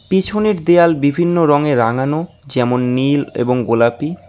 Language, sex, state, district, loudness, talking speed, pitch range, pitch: Bengali, male, West Bengal, Alipurduar, -15 LUFS, 125 wpm, 125-170 Hz, 145 Hz